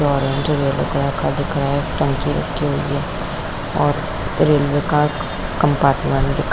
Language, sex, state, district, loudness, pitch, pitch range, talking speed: Hindi, female, Bihar, Kishanganj, -19 LUFS, 145 Hz, 140-150 Hz, 145 wpm